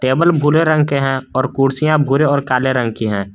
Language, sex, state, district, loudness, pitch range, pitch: Hindi, male, Jharkhand, Garhwa, -15 LUFS, 130-150 Hz, 135 Hz